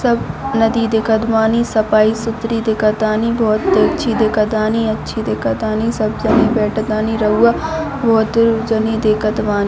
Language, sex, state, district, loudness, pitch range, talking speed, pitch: Hindi, female, Chhattisgarh, Bilaspur, -15 LUFS, 215-230 Hz, 145 wpm, 220 Hz